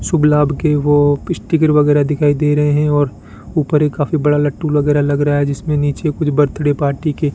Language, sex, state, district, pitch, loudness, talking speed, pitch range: Hindi, male, Rajasthan, Bikaner, 145 Hz, -15 LUFS, 205 wpm, 145-150 Hz